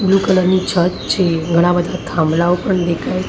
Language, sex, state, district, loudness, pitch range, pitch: Gujarati, female, Maharashtra, Mumbai Suburban, -16 LUFS, 170-185 Hz, 175 Hz